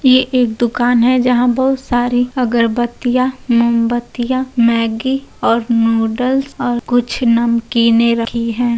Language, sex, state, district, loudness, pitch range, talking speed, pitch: Hindi, female, Uttar Pradesh, Hamirpur, -15 LUFS, 235-250 Hz, 115 wpm, 240 Hz